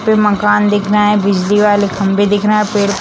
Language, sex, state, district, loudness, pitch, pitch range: Hindi, female, Bihar, Jamui, -12 LUFS, 205 Hz, 205-210 Hz